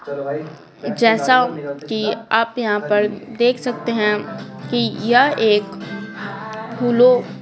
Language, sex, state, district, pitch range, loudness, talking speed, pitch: Hindi, female, Bihar, Patna, 210-240 Hz, -18 LUFS, 95 wpm, 220 Hz